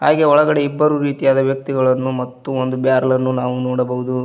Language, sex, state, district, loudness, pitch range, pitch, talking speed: Kannada, male, Karnataka, Koppal, -17 LUFS, 125-145 Hz, 130 Hz, 140 wpm